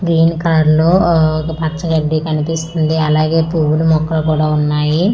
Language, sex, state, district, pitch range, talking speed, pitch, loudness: Telugu, female, Andhra Pradesh, Manyam, 155-165 Hz, 175 wpm, 160 Hz, -14 LUFS